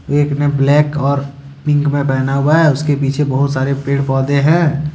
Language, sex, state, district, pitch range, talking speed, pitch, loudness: Hindi, male, Jharkhand, Deoghar, 140-145 Hz, 195 wpm, 140 Hz, -14 LUFS